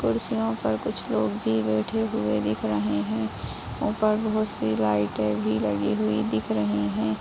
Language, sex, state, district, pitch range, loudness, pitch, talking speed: Hindi, female, Uttar Pradesh, Jalaun, 105-110 Hz, -26 LUFS, 110 Hz, 165 wpm